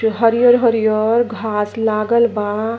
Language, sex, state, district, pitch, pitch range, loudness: Bhojpuri, female, Uttar Pradesh, Gorakhpur, 225 Hz, 215-235 Hz, -16 LUFS